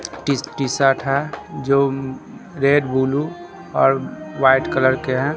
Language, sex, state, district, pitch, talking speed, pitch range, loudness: Hindi, male, Bihar, Katihar, 135 Hz, 135 wpm, 135-145 Hz, -19 LUFS